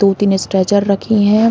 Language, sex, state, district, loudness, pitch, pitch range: Hindi, female, Uttarakhand, Uttarkashi, -14 LUFS, 200 Hz, 195-210 Hz